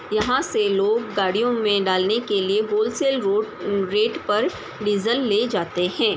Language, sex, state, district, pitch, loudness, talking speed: Hindi, female, Bihar, Samastipur, 220 Hz, -21 LUFS, 165 wpm